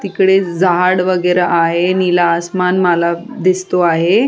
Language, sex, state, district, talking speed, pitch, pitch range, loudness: Marathi, female, Maharashtra, Sindhudurg, 125 wpm, 180 Hz, 175-185 Hz, -13 LUFS